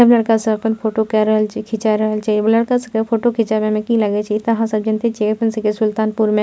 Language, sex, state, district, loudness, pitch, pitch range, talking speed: Maithili, female, Bihar, Purnia, -17 LUFS, 220 Hz, 215-225 Hz, 300 wpm